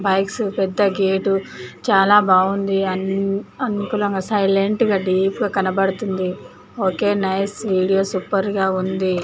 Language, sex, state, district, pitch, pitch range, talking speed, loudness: Telugu, female, Telangana, Nalgonda, 195 Hz, 190-200 Hz, 110 wpm, -19 LUFS